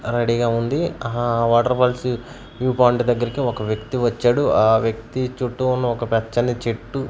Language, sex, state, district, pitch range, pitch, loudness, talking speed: Telugu, male, Andhra Pradesh, Manyam, 115-125 Hz, 120 Hz, -20 LUFS, 150 wpm